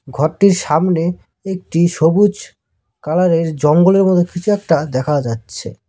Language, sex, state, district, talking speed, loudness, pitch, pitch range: Bengali, male, West Bengal, Cooch Behar, 110 wpm, -15 LUFS, 170 Hz, 150-185 Hz